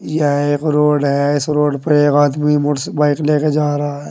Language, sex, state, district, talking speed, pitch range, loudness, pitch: Hindi, male, Uttar Pradesh, Saharanpur, 220 wpm, 145-150 Hz, -15 LUFS, 145 Hz